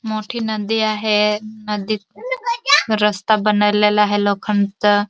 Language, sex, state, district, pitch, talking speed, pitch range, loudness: Marathi, female, Maharashtra, Dhule, 210 Hz, 95 wpm, 210-220 Hz, -18 LUFS